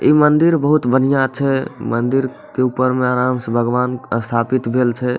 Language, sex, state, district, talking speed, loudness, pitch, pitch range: Maithili, male, Bihar, Supaul, 175 wpm, -17 LUFS, 125 Hz, 125-135 Hz